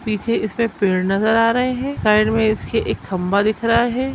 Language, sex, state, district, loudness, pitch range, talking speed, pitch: Hindi, female, Bihar, Gaya, -18 LUFS, 210-230 Hz, 215 wpm, 220 Hz